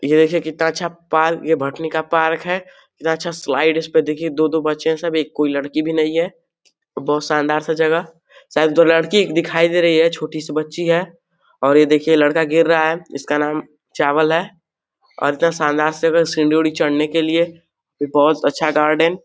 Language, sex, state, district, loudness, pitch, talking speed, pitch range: Hindi, male, Uttar Pradesh, Deoria, -17 LUFS, 160 Hz, 200 wpm, 155-165 Hz